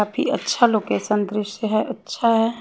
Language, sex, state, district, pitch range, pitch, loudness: Hindi, female, Haryana, Charkhi Dadri, 210-240 Hz, 220 Hz, -21 LUFS